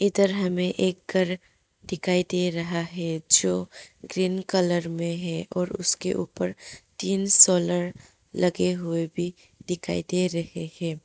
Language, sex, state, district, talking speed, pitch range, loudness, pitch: Hindi, female, West Bengal, Alipurduar, 135 wpm, 170-185 Hz, -24 LUFS, 180 Hz